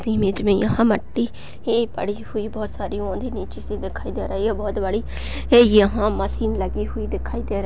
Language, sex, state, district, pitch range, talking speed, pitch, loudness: Hindi, female, Uttar Pradesh, Jyotiba Phule Nagar, 200-225 Hz, 210 wpm, 210 Hz, -22 LUFS